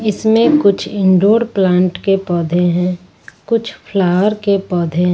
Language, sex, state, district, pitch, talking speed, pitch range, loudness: Hindi, female, Jharkhand, Ranchi, 190 Hz, 150 wpm, 180-215 Hz, -14 LUFS